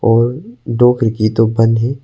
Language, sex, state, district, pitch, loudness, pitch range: Hindi, male, Arunachal Pradesh, Papum Pare, 115 Hz, -14 LUFS, 115-125 Hz